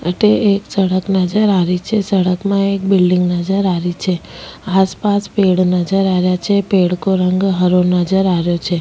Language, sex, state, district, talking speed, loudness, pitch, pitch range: Rajasthani, female, Rajasthan, Nagaur, 195 wpm, -15 LUFS, 185 Hz, 180-195 Hz